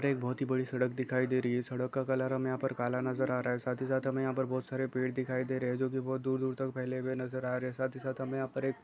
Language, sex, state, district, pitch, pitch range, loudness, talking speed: Hindi, male, Chhattisgarh, Bastar, 130 Hz, 125-130 Hz, -34 LUFS, 355 wpm